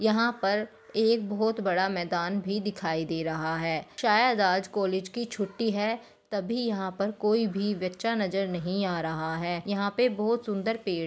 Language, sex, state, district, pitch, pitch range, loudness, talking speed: Hindi, female, Bihar, Begusarai, 200 Hz, 185-220 Hz, -28 LUFS, 180 wpm